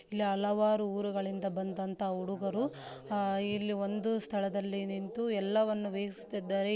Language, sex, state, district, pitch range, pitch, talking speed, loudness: Kannada, female, Karnataka, Dharwad, 195-210 Hz, 200 Hz, 105 wpm, -34 LUFS